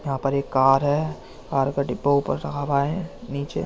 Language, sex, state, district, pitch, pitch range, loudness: Hindi, male, Uttar Pradesh, Jyotiba Phule Nagar, 140 Hz, 135-145 Hz, -23 LUFS